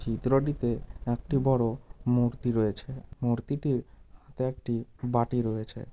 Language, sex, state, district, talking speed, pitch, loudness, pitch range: Bengali, male, West Bengal, Dakshin Dinajpur, 110 wpm, 120 Hz, -29 LUFS, 115-130 Hz